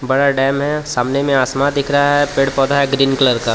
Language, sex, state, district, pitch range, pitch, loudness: Hindi, male, Jharkhand, Palamu, 135-140 Hz, 135 Hz, -15 LUFS